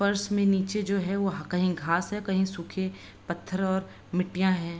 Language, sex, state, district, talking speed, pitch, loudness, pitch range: Hindi, female, Bihar, Araria, 185 wpm, 190 Hz, -28 LUFS, 180-200 Hz